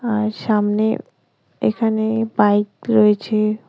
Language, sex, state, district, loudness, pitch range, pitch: Bengali, female, West Bengal, Cooch Behar, -18 LUFS, 210-220 Hz, 215 Hz